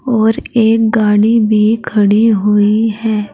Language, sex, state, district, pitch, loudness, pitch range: Hindi, female, Uttar Pradesh, Saharanpur, 220 Hz, -12 LUFS, 210-225 Hz